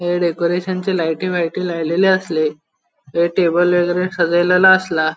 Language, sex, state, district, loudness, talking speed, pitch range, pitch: Konkani, male, Goa, North and South Goa, -16 LUFS, 115 wpm, 170-185 Hz, 175 Hz